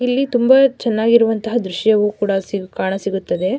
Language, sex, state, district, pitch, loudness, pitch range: Kannada, female, Karnataka, Mysore, 220 Hz, -16 LUFS, 195-245 Hz